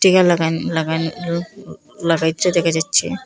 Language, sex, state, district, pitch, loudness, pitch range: Bengali, female, Assam, Hailakandi, 170 Hz, -18 LUFS, 160-180 Hz